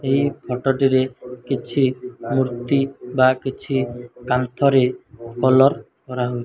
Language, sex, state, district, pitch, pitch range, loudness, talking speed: Odia, male, Odisha, Malkangiri, 130 Hz, 125-135 Hz, -20 LUFS, 120 wpm